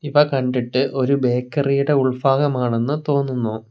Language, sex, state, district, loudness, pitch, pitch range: Malayalam, male, Kerala, Kollam, -19 LUFS, 135 Hz, 125-140 Hz